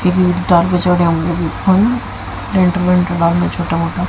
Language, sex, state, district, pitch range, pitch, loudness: Hindi, female, Haryana, Jhajjar, 170-180 Hz, 180 Hz, -14 LUFS